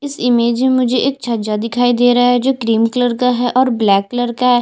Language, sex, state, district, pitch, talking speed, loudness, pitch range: Hindi, female, Chhattisgarh, Jashpur, 245 Hz, 260 wpm, -14 LUFS, 235-250 Hz